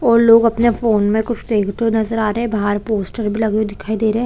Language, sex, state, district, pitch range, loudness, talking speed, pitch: Hindi, female, Chhattisgarh, Korba, 210-230 Hz, -16 LUFS, 280 wpm, 220 Hz